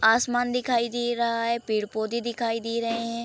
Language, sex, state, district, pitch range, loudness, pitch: Hindi, female, Bihar, Darbhanga, 230-240 Hz, -26 LUFS, 235 Hz